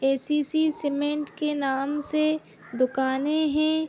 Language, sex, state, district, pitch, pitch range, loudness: Hindi, female, Uttarakhand, Tehri Garhwal, 295 Hz, 270-305 Hz, -26 LUFS